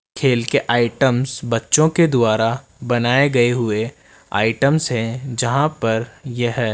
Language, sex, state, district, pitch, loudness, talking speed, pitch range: Hindi, male, Rajasthan, Jaipur, 120 Hz, -18 LUFS, 135 wpm, 115-135 Hz